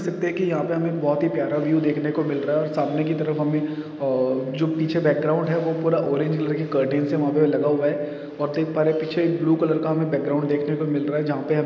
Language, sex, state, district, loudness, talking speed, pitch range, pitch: Hindi, male, Maharashtra, Dhule, -23 LUFS, 250 wpm, 145-160 Hz, 150 Hz